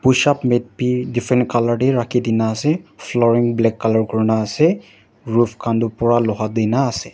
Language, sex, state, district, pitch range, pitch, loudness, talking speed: Nagamese, male, Nagaland, Dimapur, 110-125 Hz, 120 Hz, -18 LUFS, 185 wpm